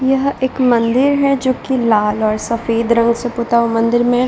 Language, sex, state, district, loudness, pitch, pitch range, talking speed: Hindi, female, Bihar, Darbhanga, -15 LUFS, 235 Hz, 230-260 Hz, 240 wpm